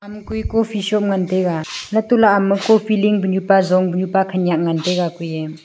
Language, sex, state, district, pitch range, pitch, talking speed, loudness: Wancho, female, Arunachal Pradesh, Longding, 180-210 Hz, 190 Hz, 245 wpm, -17 LUFS